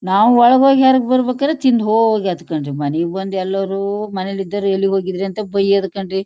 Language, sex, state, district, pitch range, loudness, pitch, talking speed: Kannada, female, Karnataka, Shimoga, 190-225 Hz, -16 LUFS, 195 Hz, 190 wpm